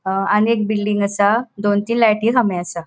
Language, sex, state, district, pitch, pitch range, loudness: Konkani, female, Goa, North and South Goa, 205 Hz, 200-225 Hz, -17 LUFS